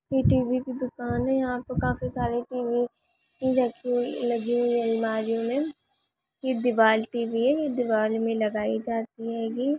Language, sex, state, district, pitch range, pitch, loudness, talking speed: Hindi, female, Chhattisgarh, Raigarh, 225-255 Hz, 240 Hz, -26 LUFS, 170 wpm